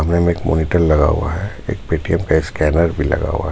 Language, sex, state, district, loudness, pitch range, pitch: Hindi, male, Jharkhand, Ranchi, -17 LUFS, 80-85 Hz, 85 Hz